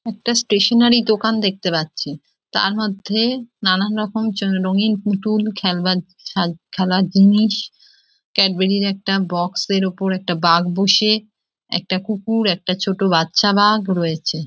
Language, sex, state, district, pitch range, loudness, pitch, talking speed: Bengali, female, West Bengal, Jhargram, 185-215 Hz, -18 LUFS, 195 Hz, 120 wpm